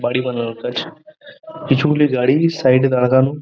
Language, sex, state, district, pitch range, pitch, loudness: Bengali, male, West Bengal, Purulia, 125-165 Hz, 135 Hz, -16 LUFS